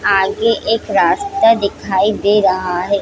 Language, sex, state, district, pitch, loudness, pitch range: Hindi, female, Chhattisgarh, Bilaspur, 205 Hz, -14 LUFS, 195-225 Hz